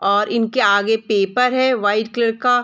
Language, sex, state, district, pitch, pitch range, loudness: Hindi, female, Bihar, Sitamarhi, 225 Hz, 205-250 Hz, -17 LUFS